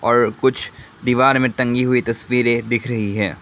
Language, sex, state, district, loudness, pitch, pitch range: Hindi, male, Assam, Kamrup Metropolitan, -18 LUFS, 120 Hz, 110-125 Hz